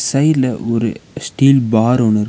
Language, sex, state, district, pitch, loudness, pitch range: Tamil, male, Tamil Nadu, Nilgiris, 120 Hz, -14 LUFS, 115-135 Hz